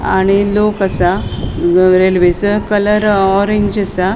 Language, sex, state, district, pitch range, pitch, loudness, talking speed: Konkani, female, Goa, North and South Goa, 185-210 Hz, 200 Hz, -12 LUFS, 100 wpm